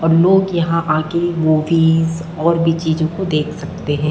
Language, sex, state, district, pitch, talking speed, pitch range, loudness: Hindi, female, Chhattisgarh, Bastar, 165 Hz, 175 wpm, 160-170 Hz, -16 LUFS